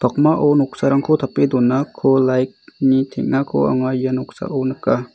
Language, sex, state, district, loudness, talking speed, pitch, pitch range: Garo, male, Meghalaya, South Garo Hills, -18 LUFS, 105 wpm, 135 Hz, 130-140 Hz